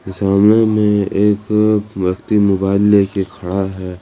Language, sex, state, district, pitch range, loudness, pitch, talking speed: Hindi, male, Jharkhand, Ranchi, 95-105 Hz, -15 LUFS, 100 Hz, 120 wpm